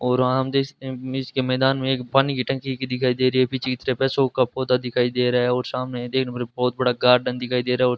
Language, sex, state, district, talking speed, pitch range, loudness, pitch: Hindi, male, Rajasthan, Bikaner, 295 wpm, 125-130 Hz, -22 LUFS, 130 Hz